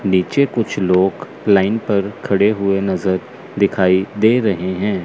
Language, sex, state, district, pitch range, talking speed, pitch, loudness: Hindi, male, Chandigarh, Chandigarh, 95-105 Hz, 140 wpm, 100 Hz, -17 LUFS